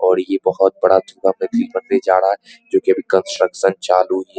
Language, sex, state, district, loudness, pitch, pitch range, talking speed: Hindi, male, Bihar, Muzaffarpur, -17 LUFS, 95 Hz, 95-130 Hz, 220 wpm